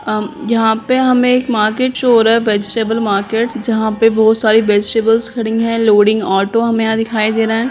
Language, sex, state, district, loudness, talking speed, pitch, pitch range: Hindi, female, Bihar, Purnia, -13 LUFS, 210 wpm, 225 Hz, 215-230 Hz